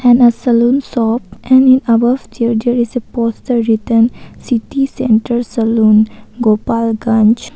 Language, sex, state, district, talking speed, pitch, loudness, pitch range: English, female, Arunachal Pradesh, Papum Pare, 125 wpm, 235 Hz, -13 LUFS, 225-245 Hz